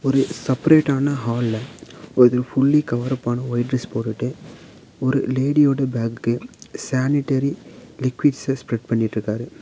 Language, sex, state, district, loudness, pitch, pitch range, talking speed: Tamil, male, Tamil Nadu, Nilgiris, -21 LUFS, 130 Hz, 120-140 Hz, 105 wpm